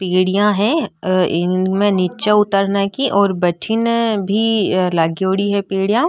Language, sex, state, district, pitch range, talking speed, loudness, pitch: Marwari, female, Rajasthan, Nagaur, 185-210 Hz, 120 wpm, -16 LUFS, 200 Hz